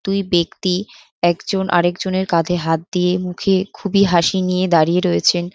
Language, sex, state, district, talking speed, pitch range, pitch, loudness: Bengali, female, West Bengal, North 24 Parganas, 150 wpm, 175-190 Hz, 180 Hz, -17 LUFS